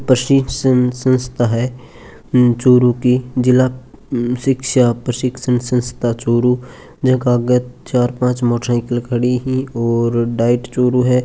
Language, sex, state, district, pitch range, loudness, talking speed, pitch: Marwari, male, Rajasthan, Churu, 120-130 Hz, -16 LUFS, 115 wpm, 125 Hz